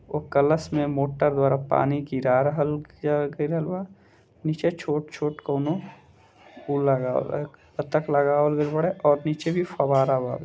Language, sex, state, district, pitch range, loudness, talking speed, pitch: Bhojpuri, male, Bihar, Gopalganj, 140-155 Hz, -24 LUFS, 150 wpm, 150 Hz